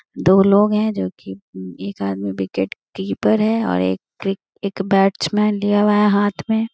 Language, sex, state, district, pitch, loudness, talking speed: Hindi, female, Bihar, Gaya, 195 Hz, -18 LUFS, 150 wpm